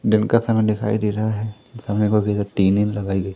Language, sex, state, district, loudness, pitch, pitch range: Hindi, male, Madhya Pradesh, Umaria, -20 LUFS, 105 Hz, 105-110 Hz